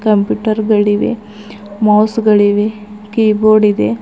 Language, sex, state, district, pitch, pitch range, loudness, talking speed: Kannada, female, Karnataka, Bidar, 210 Hz, 205-215 Hz, -13 LUFS, 90 wpm